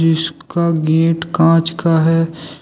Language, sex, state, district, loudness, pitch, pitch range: Hindi, male, Jharkhand, Deoghar, -15 LUFS, 165 Hz, 160-165 Hz